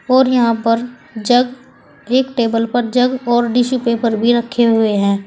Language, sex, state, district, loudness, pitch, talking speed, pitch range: Hindi, female, Uttar Pradesh, Saharanpur, -15 LUFS, 240 Hz, 170 wpm, 230-250 Hz